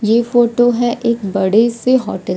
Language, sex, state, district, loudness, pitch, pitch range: Hindi, female, Odisha, Sambalpur, -14 LUFS, 235 Hz, 215-240 Hz